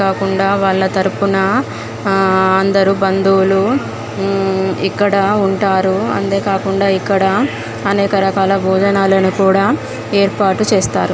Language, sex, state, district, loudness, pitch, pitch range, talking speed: Telugu, female, Andhra Pradesh, Guntur, -14 LUFS, 195 Hz, 190-200 Hz, 90 wpm